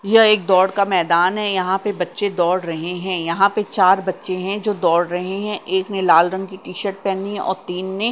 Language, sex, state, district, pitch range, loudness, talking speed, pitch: Hindi, female, Punjab, Kapurthala, 180-200 Hz, -18 LUFS, 245 wpm, 190 Hz